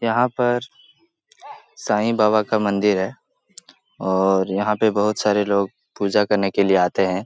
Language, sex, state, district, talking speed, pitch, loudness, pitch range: Hindi, male, Bihar, Jahanabad, 155 wpm, 105 Hz, -20 LUFS, 100-115 Hz